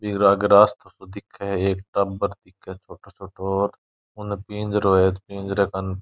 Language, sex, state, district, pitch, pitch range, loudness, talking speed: Rajasthani, male, Rajasthan, Churu, 100 Hz, 95-100 Hz, -22 LUFS, 180 wpm